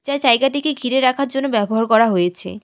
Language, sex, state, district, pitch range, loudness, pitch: Bengali, female, West Bengal, Alipurduar, 215-275 Hz, -17 LUFS, 250 Hz